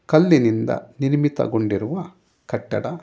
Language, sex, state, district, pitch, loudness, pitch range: Kannada, male, Karnataka, Bangalore, 135 Hz, -21 LUFS, 110-145 Hz